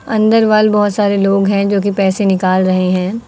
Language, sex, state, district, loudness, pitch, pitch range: Hindi, female, Uttar Pradesh, Lucknow, -13 LUFS, 200 Hz, 190-215 Hz